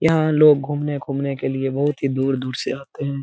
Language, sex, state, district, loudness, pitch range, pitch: Hindi, male, Bihar, Lakhisarai, -20 LUFS, 135-150 Hz, 140 Hz